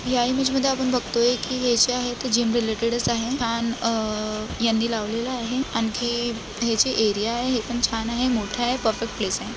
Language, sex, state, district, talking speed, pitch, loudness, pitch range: Marathi, female, Maharashtra, Dhule, 180 wpm, 235 Hz, -23 LUFS, 225-245 Hz